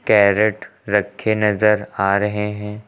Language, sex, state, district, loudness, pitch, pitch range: Hindi, male, Uttar Pradesh, Lucknow, -18 LUFS, 105 Hz, 100-105 Hz